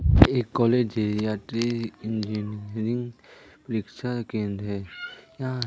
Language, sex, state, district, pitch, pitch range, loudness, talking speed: Hindi, male, Madhya Pradesh, Katni, 110 Hz, 105-120 Hz, -26 LUFS, 105 wpm